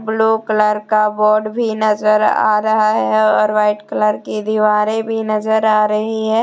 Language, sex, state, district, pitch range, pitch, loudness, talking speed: Hindi, female, Jharkhand, Deoghar, 210-220 Hz, 215 Hz, -15 LUFS, 175 wpm